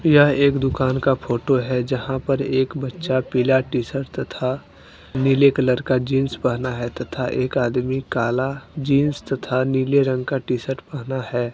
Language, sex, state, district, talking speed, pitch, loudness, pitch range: Hindi, male, Jharkhand, Deoghar, 170 wpm, 130 Hz, -21 LUFS, 125-135 Hz